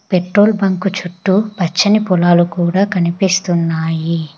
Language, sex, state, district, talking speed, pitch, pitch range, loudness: Telugu, female, Telangana, Hyderabad, 95 wpm, 180 Hz, 175-195 Hz, -14 LUFS